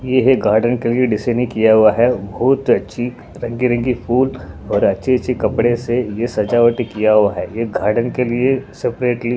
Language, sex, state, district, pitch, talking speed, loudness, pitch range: Hindi, male, Punjab, Pathankot, 120 Hz, 180 wpm, -16 LUFS, 110-125 Hz